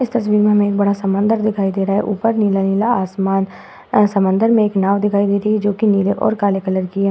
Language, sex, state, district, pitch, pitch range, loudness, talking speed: Hindi, female, Uttar Pradesh, Hamirpur, 200 Hz, 195-210 Hz, -16 LUFS, 235 wpm